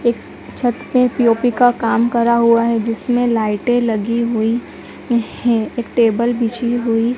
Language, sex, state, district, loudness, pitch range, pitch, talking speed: Hindi, female, Madhya Pradesh, Dhar, -16 LUFS, 230-245 Hz, 235 Hz, 150 wpm